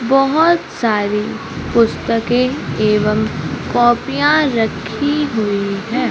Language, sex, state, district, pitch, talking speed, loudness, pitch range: Hindi, female, Madhya Pradesh, Umaria, 235 Hz, 80 wpm, -16 LUFS, 215-270 Hz